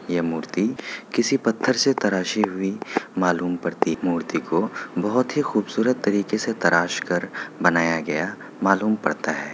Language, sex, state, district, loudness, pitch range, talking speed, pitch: Hindi, male, Bihar, Kishanganj, -23 LUFS, 85-115 Hz, 140 wpm, 95 Hz